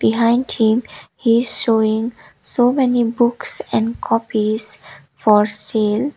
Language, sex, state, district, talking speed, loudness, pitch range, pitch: English, female, Sikkim, Gangtok, 115 wpm, -17 LUFS, 215-240 Hz, 225 Hz